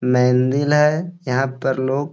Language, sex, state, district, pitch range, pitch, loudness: Hindi, male, Bihar, Gaya, 125-150 Hz, 135 Hz, -18 LUFS